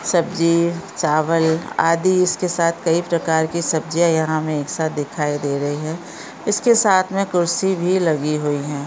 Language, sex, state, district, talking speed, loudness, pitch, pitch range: Hindi, female, Maharashtra, Solapur, 175 wpm, -19 LUFS, 165 Hz, 155-175 Hz